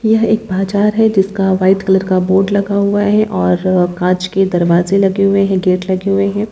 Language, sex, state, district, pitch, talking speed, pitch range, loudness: Hindi, female, Chhattisgarh, Bilaspur, 195 Hz, 220 wpm, 185-200 Hz, -13 LUFS